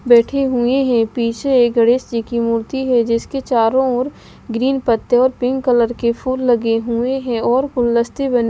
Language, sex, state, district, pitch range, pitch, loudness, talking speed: Hindi, female, Bihar, West Champaran, 235-260 Hz, 245 Hz, -16 LUFS, 185 wpm